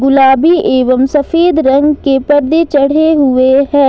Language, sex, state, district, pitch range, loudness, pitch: Hindi, female, Jharkhand, Ranchi, 270-310 Hz, -9 LUFS, 280 Hz